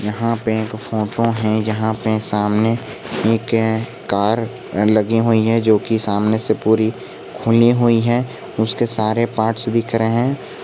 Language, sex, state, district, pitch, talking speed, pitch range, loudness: Hindi, male, Jharkhand, Garhwa, 110 Hz, 150 wpm, 110-115 Hz, -17 LUFS